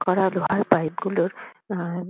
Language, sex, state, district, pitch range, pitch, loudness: Bengali, female, West Bengal, Kolkata, 175-190 Hz, 185 Hz, -24 LUFS